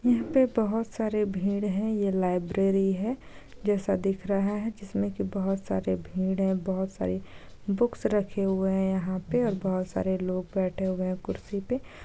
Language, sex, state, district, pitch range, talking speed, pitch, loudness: Hindi, female, Bihar, Jahanabad, 185-205 Hz, 180 wpm, 195 Hz, -28 LUFS